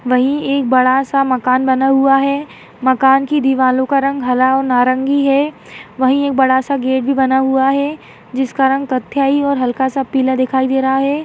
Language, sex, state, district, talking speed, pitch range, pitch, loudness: Hindi, female, Maharashtra, Aurangabad, 180 wpm, 260-275 Hz, 265 Hz, -14 LUFS